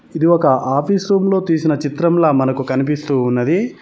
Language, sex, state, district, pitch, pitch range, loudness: Telugu, male, Telangana, Mahabubabad, 155 Hz, 135-170 Hz, -16 LUFS